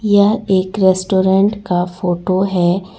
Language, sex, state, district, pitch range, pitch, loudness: Hindi, female, Jharkhand, Deoghar, 185-200 Hz, 190 Hz, -15 LUFS